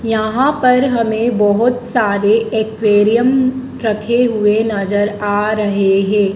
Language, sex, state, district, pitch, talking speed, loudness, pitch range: Hindi, female, Madhya Pradesh, Dhar, 220 Hz, 115 wpm, -14 LUFS, 205-240 Hz